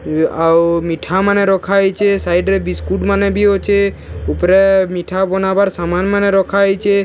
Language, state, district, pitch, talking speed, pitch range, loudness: Sambalpuri, Odisha, Sambalpur, 195 Hz, 195 wpm, 175-200 Hz, -14 LUFS